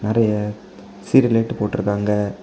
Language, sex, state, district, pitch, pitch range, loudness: Tamil, male, Tamil Nadu, Kanyakumari, 105 Hz, 105-115 Hz, -19 LUFS